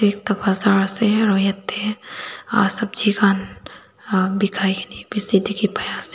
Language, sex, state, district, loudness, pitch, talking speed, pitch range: Nagamese, female, Nagaland, Dimapur, -20 LUFS, 205 Hz, 125 wpm, 195-210 Hz